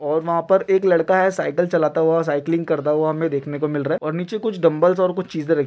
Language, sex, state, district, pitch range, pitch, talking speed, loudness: Hindi, male, West Bengal, Kolkata, 155-180 Hz, 165 Hz, 275 wpm, -19 LUFS